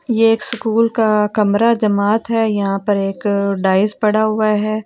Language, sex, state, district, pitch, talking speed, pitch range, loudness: Hindi, female, Delhi, New Delhi, 215 Hz, 185 wpm, 205-225 Hz, -16 LUFS